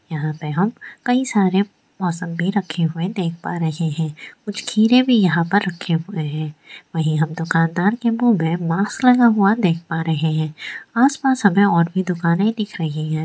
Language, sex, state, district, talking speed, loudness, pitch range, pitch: Hindi, female, West Bengal, Jalpaiguri, 190 wpm, -19 LUFS, 165-205 Hz, 180 Hz